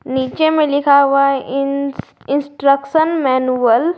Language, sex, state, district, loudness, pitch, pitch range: Hindi, female, Jharkhand, Garhwa, -15 LUFS, 275 Hz, 270-295 Hz